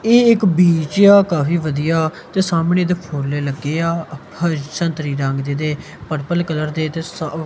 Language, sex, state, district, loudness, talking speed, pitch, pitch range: Punjabi, male, Punjab, Kapurthala, -17 LUFS, 185 wpm, 160 Hz, 150-175 Hz